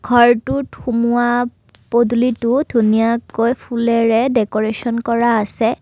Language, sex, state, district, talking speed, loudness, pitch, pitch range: Assamese, female, Assam, Kamrup Metropolitan, 80 wpm, -16 LUFS, 235 Hz, 230-240 Hz